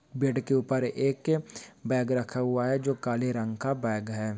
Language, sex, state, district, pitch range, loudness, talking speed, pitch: Hindi, male, Maharashtra, Dhule, 120-135 Hz, -29 LUFS, 190 wpm, 130 Hz